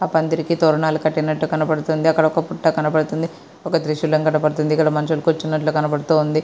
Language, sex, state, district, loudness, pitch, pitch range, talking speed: Telugu, female, Andhra Pradesh, Srikakulam, -19 LUFS, 155 Hz, 155-160 Hz, 160 wpm